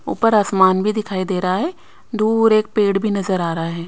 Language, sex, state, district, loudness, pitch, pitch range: Hindi, female, Haryana, Rohtak, -18 LUFS, 200 Hz, 185-215 Hz